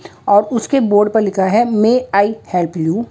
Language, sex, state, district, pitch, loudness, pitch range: Hindi, female, Uttar Pradesh, Jalaun, 210 Hz, -14 LUFS, 195-230 Hz